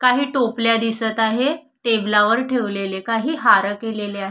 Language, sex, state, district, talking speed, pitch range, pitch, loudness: Marathi, female, Maharashtra, Solapur, 140 wpm, 210-250 Hz, 225 Hz, -19 LUFS